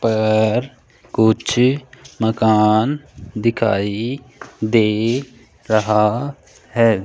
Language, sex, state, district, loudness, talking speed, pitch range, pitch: Hindi, male, Rajasthan, Jaipur, -18 LUFS, 60 wpm, 110-125 Hz, 115 Hz